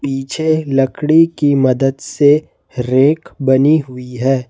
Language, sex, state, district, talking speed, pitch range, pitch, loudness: Hindi, male, Jharkhand, Ranchi, 120 wpm, 130-150 Hz, 135 Hz, -14 LUFS